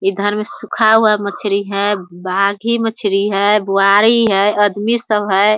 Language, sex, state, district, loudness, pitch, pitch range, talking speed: Hindi, female, Bihar, Muzaffarpur, -14 LUFS, 205 Hz, 200-215 Hz, 160 wpm